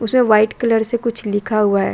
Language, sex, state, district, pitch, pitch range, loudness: Hindi, female, Chhattisgarh, Bilaspur, 220 Hz, 210-235 Hz, -16 LUFS